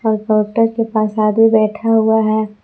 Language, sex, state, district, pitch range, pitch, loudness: Hindi, female, Jharkhand, Palamu, 215-225 Hz, 220 Hz, -14 LUFS